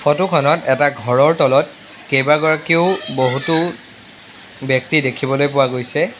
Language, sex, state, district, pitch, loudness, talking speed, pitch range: Assamese, male, Assam, Sonitpur, 145 Hz, -16 LUFS, 105 wpm, 130-155 Hz